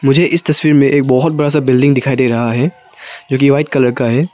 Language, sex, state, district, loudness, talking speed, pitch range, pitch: Hindi, male, Arunachal Pradesh, Papum Pare, -12 LUFS, 250 wpm, 130-150 Hz, 140 Hz